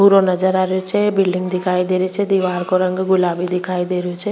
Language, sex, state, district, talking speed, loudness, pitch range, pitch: Rajasthani, female, Rajasthan, Churu, 250 wpm, -17 LUFS, 180-190 Hz, 185 Hz